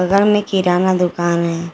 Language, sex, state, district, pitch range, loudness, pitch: Hindi, female, Jharkhand, Garhwa, 170-195 Hz, -16 LUFS, 180 Hz